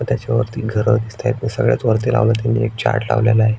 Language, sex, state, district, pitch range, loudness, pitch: Marathi, male, Maharashtra, Aurangabad, 110-115 Hz, -17 LUFS, 115 Hz